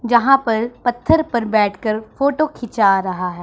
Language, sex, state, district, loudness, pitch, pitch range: Hindi, female, Punjab, Pathankot, -17 LUFS, 235 Hz, 210-255 Hz